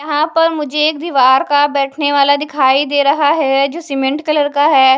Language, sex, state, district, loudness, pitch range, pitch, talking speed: Hindi, female, Odisha, Khordha, -13 LUFS, 275-300 Hz, 290 Hz, 205 wpm